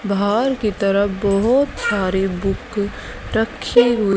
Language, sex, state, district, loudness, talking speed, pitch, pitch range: Hindi, female, Haryana, Charkhi Dadri, -19 LUFS, 115 wpm, 205 Hz, 195-230 Hz